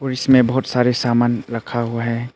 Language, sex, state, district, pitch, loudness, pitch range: Hindi, male, Arunachal Pradesh, Papum Pare, 120 Hz, -18 LUFS, 115-125 Hz